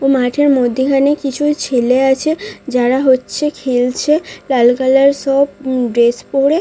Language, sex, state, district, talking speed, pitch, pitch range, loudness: Bengali, female, West Bengal, Dakshin Dinajpur, 135 wpm, 270 Hz, 250-280 Hz, -14 LUFS